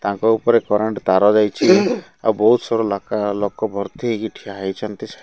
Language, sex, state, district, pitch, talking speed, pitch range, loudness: Odia, male, Odisha, Malkangiri, 105 Hz, 160 wpm, 100-110 Hz, -18 LUFS